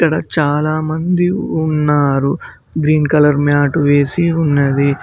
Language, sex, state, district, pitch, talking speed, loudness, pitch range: Telugu, male, Telangana, Mahabubabad, 150 Hz, 105 wpm, -14 LUFS, 145-160 Hz